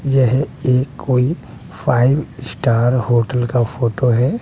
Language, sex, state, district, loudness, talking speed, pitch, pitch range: Hindi, male, Bihar, West Champaran, -17 LUFS, 120 wpm, 125 Hz, 120-135 Hz